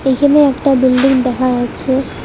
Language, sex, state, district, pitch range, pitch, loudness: Bengali, female, West Bengal, Alipurduar, 255-275 Hz, 265 Hz, -13 LUFS